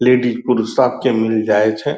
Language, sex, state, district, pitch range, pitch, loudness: Angika, male, Bihar, Purnia, 110-125 Hz, 115 Hz, -16 LUFS